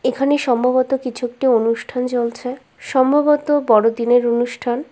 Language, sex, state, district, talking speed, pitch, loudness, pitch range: Bengali, female, West Bengal, Kolkata, 110 wpm, 250 Hz, -17 LUFS, 240-265 Hz